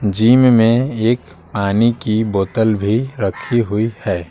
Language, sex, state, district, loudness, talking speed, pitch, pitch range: Hindi, male, Bihar, Patna, -16 LUFS, 140 wpm, 110 Hz, 100-120 Hz